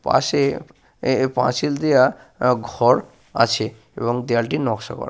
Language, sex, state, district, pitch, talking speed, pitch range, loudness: Bengali, male, Jharkhand, Sahebganj, 125 Hz, 140 wpm, 115-130 Hz, -20 LUFS